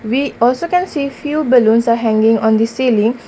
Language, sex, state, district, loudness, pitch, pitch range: English, female, Assam, Kamrup Metropolitan, -14 LUFS, 240 Hz, 225-280 Hz